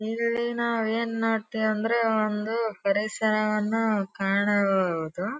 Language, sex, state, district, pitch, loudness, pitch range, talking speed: Kannada, female, Karnataka, Dharwad, 220 Hz, -26 LUFS, 205-225 Hz, 90 wpm